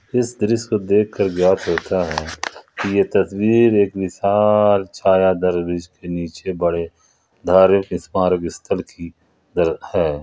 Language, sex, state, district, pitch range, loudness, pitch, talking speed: Hindi, male, Jharkhand, Ranchi, 90-105 Hz, -18 LUFS, 95 Hz, 125 wpm